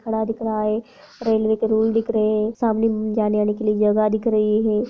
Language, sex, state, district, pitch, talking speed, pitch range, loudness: Hindi, female, Jharkhand, Jamtara, 220 Hz, 230 wpm, 215-225 Hz, -20 LUFS